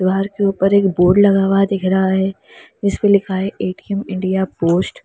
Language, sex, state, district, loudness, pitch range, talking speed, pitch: Hindi, female, Uttar Pradesh, Lalitpur, -16 LUFS, 190-200 Hz, 200 wpm, 195 Hz